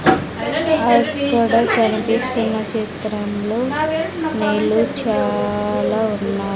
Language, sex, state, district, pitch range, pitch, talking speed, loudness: Telugu, female, Andhra Pradesh, Sri Satya Sai, 210-250 Hz, 220 Hz, 65 wpm, -19 LUFS